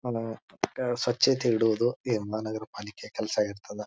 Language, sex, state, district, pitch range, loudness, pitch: Kannada, male, Karnataka, Bijapur, 105-120 Hz, -29 LUFS, 115 Hz